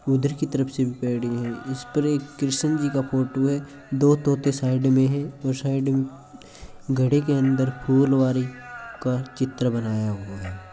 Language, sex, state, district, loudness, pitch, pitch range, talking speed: Hindi, male, Rajasthan, Churu, -23 LUFS, 135 Hz, 125-140 Hz, 175 wpm